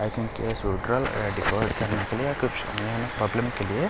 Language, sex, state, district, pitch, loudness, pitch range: Hindi, male, Delhi, New Delhi, 110 Hz, -27 LUFS, 105-115 Hz